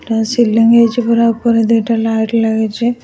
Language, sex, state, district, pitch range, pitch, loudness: Odia, female, Odisha, Khordha, 225-235 Hz, 230 Hz, -13 LUFS